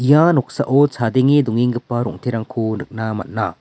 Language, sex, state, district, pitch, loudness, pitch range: Garo, male, Meghalaya, West Garo Hills, 120 Hz, -18 LUFS, 110-140 Hz